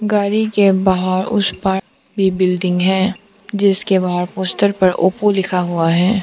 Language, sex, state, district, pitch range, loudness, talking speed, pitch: Hindi, female, Arunachal Pradesh, Papum Pare, 185-205 Hz, -16 LUFS, 155 wpm, 190 Hz